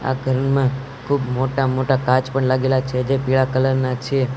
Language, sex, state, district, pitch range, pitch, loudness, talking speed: Gujarati, male, Gujarat, Gandhinagar, 130-135 Hz, 130 Hz, -19 LUFS, 190 wpm